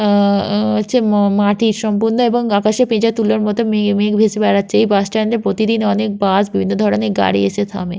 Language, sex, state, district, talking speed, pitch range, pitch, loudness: Bengali, female, West Bengal, Jhargram, 205 wpm, 200-220 Hz, 210 Hz, -15 LUFS